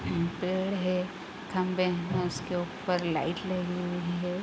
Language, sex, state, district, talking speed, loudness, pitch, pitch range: Hindi, female, Bihar, East Champaran, 165 wpm, -31 LUFS, 180 Hz, 175-185 Hz